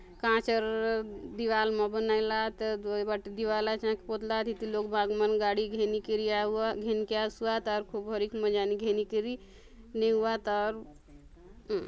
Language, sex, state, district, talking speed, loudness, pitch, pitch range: Halbi, female, Chhattisgarh, Bastar, 180 wpm, -31 LUFS, 215 Hz, 210-220 Hz